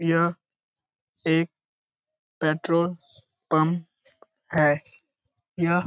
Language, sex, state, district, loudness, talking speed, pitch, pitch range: Hindi, male, Bihar, Lakhisarai, -25 LUFS, 70 wpm, 170 Hz, 155-175 Hz